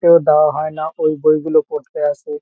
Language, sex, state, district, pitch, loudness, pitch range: Bengali, male, West Bengal, Kolkata, 155 Hz, -16 LUFS, 155-190 Hz